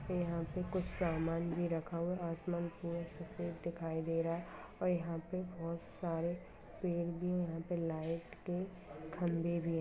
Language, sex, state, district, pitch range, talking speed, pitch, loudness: Hindi, female, Jharkhand, Sahebganj, 165-175 Hz, 175 wpm, 170 Hz, -40 LUFS